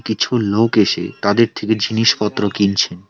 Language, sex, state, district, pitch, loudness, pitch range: Bengali, male, West Bengal, Alipurduar, 105 Hz, -16 LUFS, 100-110 Hz